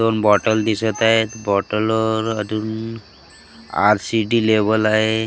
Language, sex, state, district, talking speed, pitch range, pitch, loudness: Marathi, male, Maharashtra, Gondia, 115 wpm, 105-110 Hz, 110 Hz, -18 LUFS